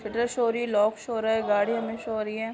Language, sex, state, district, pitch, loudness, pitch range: Hindi, female, Uttar Pradesh, Hamirpur, 225 Hz, -26 LUFS, 215-230 Hz